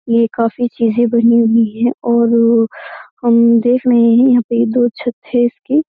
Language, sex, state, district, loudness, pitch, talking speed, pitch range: Hindi, female, Uttar Pradesh, Jyotiba Phule Nagar, -13 LUFS, 235 Hz, 175 wpm, 230-245 Hz